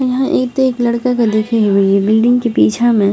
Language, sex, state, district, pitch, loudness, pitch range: Maithili, female, Bihar, Purnia, 235 Hz, -13 LUFS, 215-250 Hz